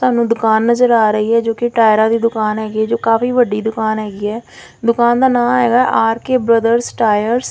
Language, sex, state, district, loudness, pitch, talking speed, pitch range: Punjabi, female, Punjab, Fazilka, -14 LUFS, 230 Hz, 215 wpm, 220-240 Hz